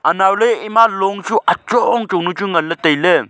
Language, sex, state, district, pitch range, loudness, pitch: Wancho, male, Arunachal Pradesh, Longding, 180-225 Hz, -15 LUFS, 195 Hz